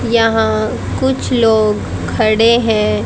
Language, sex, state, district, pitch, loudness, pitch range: Hindi, female, Haryana, Charkhi Dadri, 225 Hz, -14 LUFS, 215-230 Hz